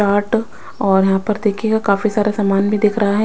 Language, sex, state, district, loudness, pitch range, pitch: Hindi, female, Chhattisgarh, Raipur, -16 LUFS, 200-220 Hz, 210 Hz